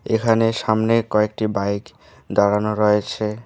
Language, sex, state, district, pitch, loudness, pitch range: Bengali, male, West Bengal, Alipurduar, 105 Hz, -19 LUFS, 105-115 Hz